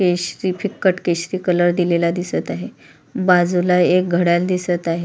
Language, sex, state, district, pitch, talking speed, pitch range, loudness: Marathi, female, Maharashtra, Solapur, 180 Hz, 140 wpm, 175-185 Hz, -18 LUFS